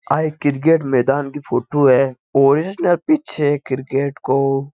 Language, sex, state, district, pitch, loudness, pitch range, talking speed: Marwari, male, Rajasthan, Nagaur, 140 Hz, -17 LUFS, 135-155 Hz, 165 wpm